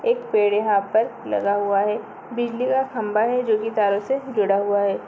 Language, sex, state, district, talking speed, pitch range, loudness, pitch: Hindi, female, Bihar, Sitamarhi, 200 wpm, 205-245 Hz, -21 LUFS, 215 Hz